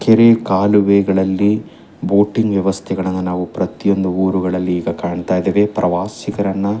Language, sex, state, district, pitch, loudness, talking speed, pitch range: Kannada, male, Karnataka, Chamarajanagar, 95 Hz, -16 LUFS, 105 wpm, 90-100 Hz